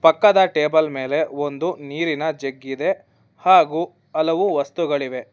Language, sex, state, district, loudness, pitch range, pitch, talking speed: Kannada, female, Karnataka, Bangalore, -20 LUFS, 140-165 Hz, 155 Hz, 110 wpm